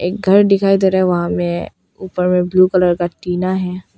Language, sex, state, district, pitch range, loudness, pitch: Hindi, female, Arunachal Pradesh, Longding, 180-190 Hz, -15 LUFS, 185 Hz